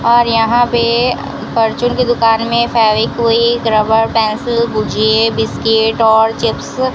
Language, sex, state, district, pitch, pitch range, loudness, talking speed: Hindi, female, Rajasthan, Bikaner, 230 Hz, 225-235 Hz, -13 LUFS, 130 wpm